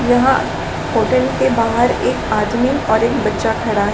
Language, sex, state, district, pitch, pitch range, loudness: Hindi, female, Chhattisgarh, Raigarh, 225 Hz, 210-245 Hz, -16 LUFS